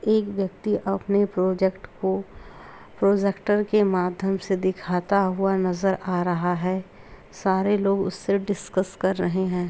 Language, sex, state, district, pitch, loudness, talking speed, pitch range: Hindi, female, Uttar Pradesh, Jalaun, 190 Hz, -24 LUFS, 150 wpm, 185-200 Hz